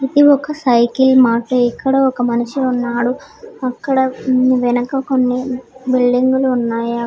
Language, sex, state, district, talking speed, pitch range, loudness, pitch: Telugu, female, Telangana, Hyderabad, 120 wpm, 245-265 Hz, -15 LUFS, 255 Hz